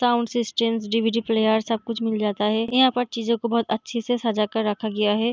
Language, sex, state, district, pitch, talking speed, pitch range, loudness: Hindi, female, Bihar, Darbhanga, 225 Hz, 225 wpm, 220-235 Hz, -23 LUFS